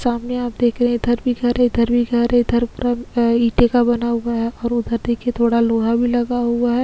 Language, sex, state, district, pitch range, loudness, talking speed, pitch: Hindi, female, Uttarakhand, Tehri Garhwal, 235-245 Hz, -18 LUFS, 255 wpm, 240 Hz